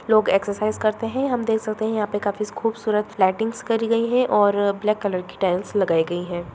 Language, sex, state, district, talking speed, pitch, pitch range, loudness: Hindi, female, Bihar, Lakhisarai, 220 wpm, 215 Hz, 200-225 Hz, -22 LUFS